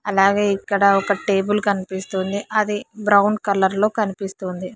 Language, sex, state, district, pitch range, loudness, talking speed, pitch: Telugu, female, Telangana, Hyderabad, 195-210 Hz, -19 LUFS, 125 wpm, 200 Hz